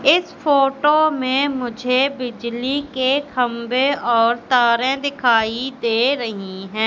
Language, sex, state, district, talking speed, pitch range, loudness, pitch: Hindi, female, Madhya Pradesh, Katni, 115 wpm, 235-280 Hz, -18 LUFS, 255 Hz